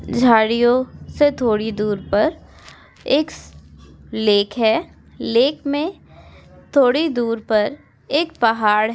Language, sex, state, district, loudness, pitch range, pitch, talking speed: Hindi, female, Uttar Pradesh, Etah, -18 LUFS, 210-280 Hz, 230 Hz, 105 wpm